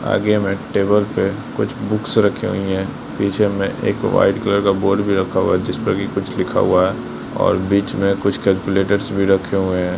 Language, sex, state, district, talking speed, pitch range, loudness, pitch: Hindi, male, Bihar, Jamui, 205 wpm, 95-100 Hz, -18 LUFS, 100 Hz